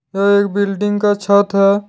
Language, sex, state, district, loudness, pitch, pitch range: Hindi, male, Jharkhand, Deoghar, -15 LUFS, 200 Hz, 200-205 Hz